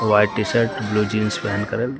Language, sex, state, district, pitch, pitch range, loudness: Hindi, male, Uttar Pradesh, Lucknow, 105 Hz, 105-115 Hz, -21 LUFS